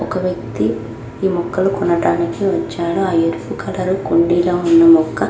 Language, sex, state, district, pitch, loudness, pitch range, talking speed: Telugu, female, Andhra Pradesh, Krishna, 170 Hz, -16 LUFS, 165-185 Hz, 160 wpm